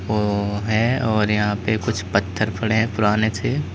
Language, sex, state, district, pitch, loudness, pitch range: Hindi, male, Uttar Pradesh, Lalitpur, 105 Hz, -21 LUFS, 105-110 Hz